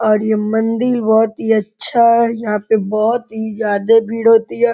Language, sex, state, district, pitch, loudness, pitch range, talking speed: Hindi, male, Uttar Pradesh, Gorakhpur, 225 Hz, -15 LUFS, 215-230 Hz, 175 wpm